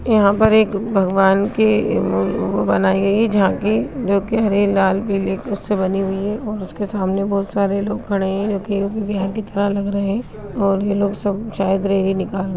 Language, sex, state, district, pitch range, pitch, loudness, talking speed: Hindi, female, Bihar, Gaya, 195-205 Hz, 200 Hz, -18 LUFS, 215 wpm